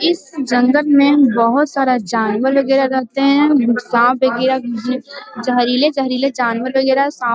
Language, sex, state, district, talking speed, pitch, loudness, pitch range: Hindi, female, Bihar, Jamui, 130 wpm, 260 Hz, -15 LUFS, 245-275 Hz